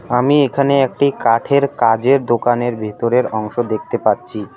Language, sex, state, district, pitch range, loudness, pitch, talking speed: Bengali, male, West Bengal, Alipurduar, 110-135 Hz, -16 LUFS, 120 Hz, 130 wpm